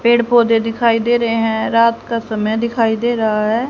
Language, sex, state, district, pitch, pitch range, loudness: Hindi, female, Haryana, Jhajjar, 230 Hz, 225-235 Hz, -15 LUFS